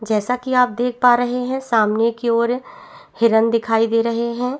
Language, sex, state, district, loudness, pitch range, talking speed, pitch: Hindi, female, Chhattisgarh, Bastar, -18 LUFS, 230-250 Hz, 195 wpm, 235 Hz